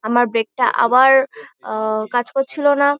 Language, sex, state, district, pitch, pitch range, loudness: Bengali, female, West Bengal, Kolkata, 245 Hz, 230-270 Hz, -16 LUFS